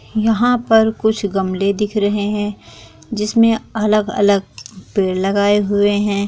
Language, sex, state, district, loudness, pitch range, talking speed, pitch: Hindi, female, Bihar, East Champaran, -16 LUFS, 200-220 Hz, 135 wpm, 205 Hz